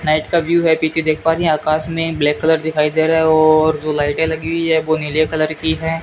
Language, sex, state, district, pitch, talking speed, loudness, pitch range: Hindi, male, Rajasthan, Bikaner, 160 Hz, 280 wpm, -16 LUFS, 155-160 Hz